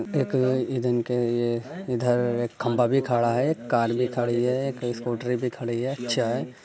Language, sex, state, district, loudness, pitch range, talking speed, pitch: Hindi, male, Uttar Pradesh, Muzaffarnagar, -25 LUFS, 120-125 Hz, 205 wpm, 120 Hz